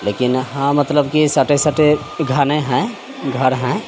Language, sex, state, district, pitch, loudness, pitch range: Hindi, male, Bihar, Samastipur, 140 Hz, -16 LUFS, 130-150 Hz